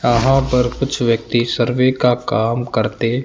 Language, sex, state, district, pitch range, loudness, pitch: Hindi, male, Rajasthan, Jaipur, 115-130 Hz, -17 LUFS, 120 Hz